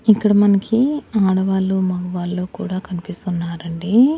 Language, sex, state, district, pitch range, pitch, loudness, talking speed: Telugu, female, Andhra Pradesh, Annamaya, 180-210 Hz, 190 Hz, -19 LUFS, 85 wpm